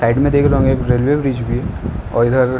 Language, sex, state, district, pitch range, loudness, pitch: Hindi, male, Uttar Pradesh, Ghazipur, 115-135 Hz, -16 LUFS, 125 Hz